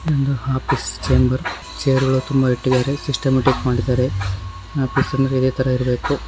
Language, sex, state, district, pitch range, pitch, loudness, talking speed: Kannada, male, Karnataka, Shimoga, 125-135 Hz, 130 Hz, -19 LUFS, 125 wpm